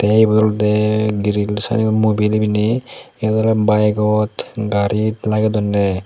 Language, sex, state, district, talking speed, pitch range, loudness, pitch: Chakma, male, Tripura, Unakoti, 110 wpm, 105-110 Hz, -16 LUFS, 105 Hz